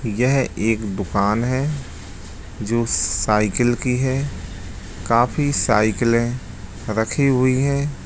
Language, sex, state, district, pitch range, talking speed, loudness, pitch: Hindi, male, Bihar, Lakhisarai, 100-130 Hz, 95 wpm, -20 LUFS, 115 Hz